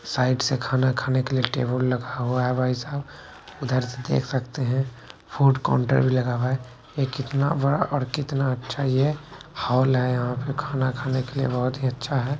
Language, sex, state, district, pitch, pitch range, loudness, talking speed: Maithili, male, Bihar, Kishanganj, 130 Hz, 125-135 Hz, -24 LUFS, 205 wpm